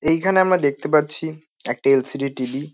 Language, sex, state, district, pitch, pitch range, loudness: Bengali, male, West Bengal, North 24 Parganas, 150 Hz, 135-160 Hz, -20 LUFS